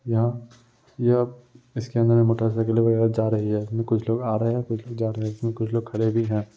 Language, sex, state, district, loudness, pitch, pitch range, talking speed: Hindi, male, Uttar Pradesh, Muzaffarnagar, -23 LUFS, 115 Hz, 110-120 Hz, 255 wpm